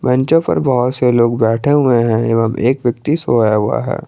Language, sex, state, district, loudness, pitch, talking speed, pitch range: Hindi, male, Jharkhand, Garhwa, -14 LUFS, 120 Hz, 205 wpm, 115-130 Hz